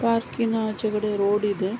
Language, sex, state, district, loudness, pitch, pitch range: Kannada, female, Karnataka, Mysore, -24 LUFS, 215 Hz, 205-230 Hz